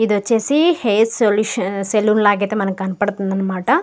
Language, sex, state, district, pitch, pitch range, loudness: Telugu, female, Andhra Pradesh, Guntur, 210 Hz, 195-225 Hz, -17 LUFS